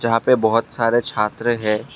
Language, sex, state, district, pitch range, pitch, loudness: Hindi, male, Assam, Kamrup Metropolitan, 110-120 Hz, 115 Hz, -19 LUFS